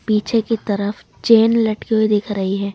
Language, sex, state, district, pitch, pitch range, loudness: Hindi, female, Rajasthan, Jaipur, 215 Hz, 205-225 Hz, -17 LUFS